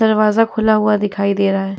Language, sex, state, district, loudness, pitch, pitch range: Hindi, female, Uttar Pradesh, Muzaffarnagar, -15 LUFS, 210 Hz, 200-220 Hz